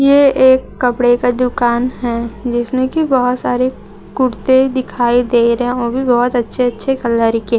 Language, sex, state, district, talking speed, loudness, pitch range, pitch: Hindi, female, Chhattisgarh, Raipur, 175 wpm, -14 LUFS, 240-260 Hz, 245 Hz